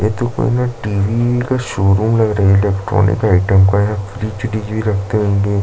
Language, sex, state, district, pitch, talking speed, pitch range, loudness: Hindi, male, Chhattisgarh, Jashpur, 105 Hz, 225 wpm, 100-115 Hz, -15 LUFS